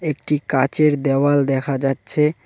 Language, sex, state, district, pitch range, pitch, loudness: Bengali, male, West Bengal, Cooch Behar, 135-150 Hz, 145 Hz, -19 LUFS